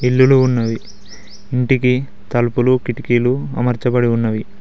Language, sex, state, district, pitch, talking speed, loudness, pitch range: Telugu, male, Telangana, Mahabubabad, 125 Hz, 90 wpm, -16 LUFS, 120-130 Hz